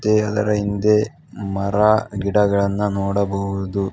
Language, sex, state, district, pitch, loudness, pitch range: Kannada, male, Karnataka, Bangalore, 100 Hz, -19 LUFS, 100-105 Hz